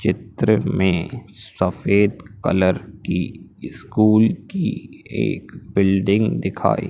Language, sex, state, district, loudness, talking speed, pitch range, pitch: Hindi, male, Madhya Pradesh, Umaria, -20 LUFS, 85 wpm, 95-110 Hz, 100 Hz